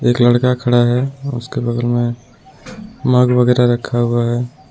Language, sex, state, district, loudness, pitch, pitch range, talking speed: Hindi, male, Jharkhand, Deoghar, -15 LUFS, 125 Hz, 120-130 Hz, 155 wpm